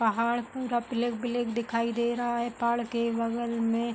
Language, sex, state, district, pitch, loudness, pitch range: Hindi, female, Uttar Pradesh, Hamirpur, 235 Hz, -29 LUFS, 230-240 Hz